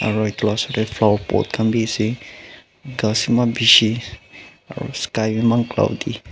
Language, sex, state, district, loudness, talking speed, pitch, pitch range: Nagamese, male, Nagaland, Dimapur, -18 LUFS, 180 wpm, 110 Hz, 110-115 Hz